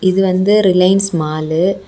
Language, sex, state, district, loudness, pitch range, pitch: Tamil, female, Tamil Nadu, Kanyakumari, -13 LUFS, 170-195 Hz, 185 Hz